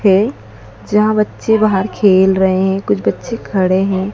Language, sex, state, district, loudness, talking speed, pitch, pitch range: Hindi, female, Madhya Pradesh, Dhar, -14 LUFS, 145 wpm, 195 Hz, 190-215 Hz